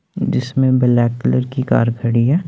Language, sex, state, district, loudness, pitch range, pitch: Hindi, male, Chandigarh, Chandigarh, -16 LUFS, 120-135 Hz, 125 Hz